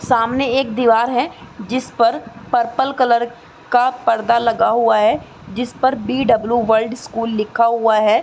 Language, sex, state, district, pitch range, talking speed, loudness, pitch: Hindi, female, Bihar, East Champaran, 230-250 Hz, 145 wpm, -17 LUFS, 235 Hz